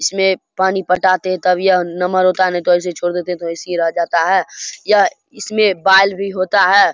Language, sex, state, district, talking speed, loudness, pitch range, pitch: Hindi, male, Bihar, Begusarai, 225 wpm, -15 LUFS, 180-190 Hz, 185 Hz